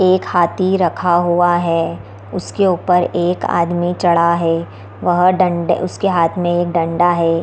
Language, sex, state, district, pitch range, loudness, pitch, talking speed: Hindi, female, Bihar, East Champaran, 170-180 Hz, -16 LUFS, 175 Hz, 155 wpm